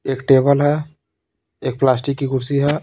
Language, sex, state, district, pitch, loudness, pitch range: Hindi, male, Bihar, Patna, 140 Hz, -18 LUFS, 130-145 Hz